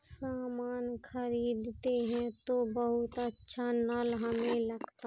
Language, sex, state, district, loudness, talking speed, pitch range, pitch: Hindi, female, Uttar Pradesh, Jalaun, -35 LUFS, 120 wpm, 235-245 Hz, 240 Hz